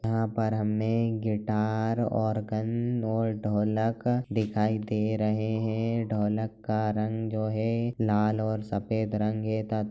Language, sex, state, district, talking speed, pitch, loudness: Hindi, male, Chhattisgarh, Raigarh, 140 wpm, 110 Hz, -28 LUFS